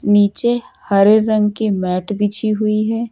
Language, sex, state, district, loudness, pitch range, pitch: Hindi, female, Uttar Pradesh, Lucknow, -15 LUFS, 205-220 Hz, 215 Hz